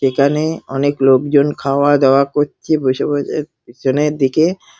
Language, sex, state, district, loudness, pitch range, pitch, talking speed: Bengali, male, West Bengal, Dakshin Dinajpur, -15 LUFS, 135-150 Hz, 145 Hz, 125 wpm